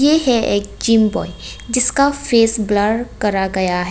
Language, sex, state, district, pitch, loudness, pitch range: Hindi, female, Tripura, West Tripura, 225 Hz, -16 LUFS, 205-250 Hz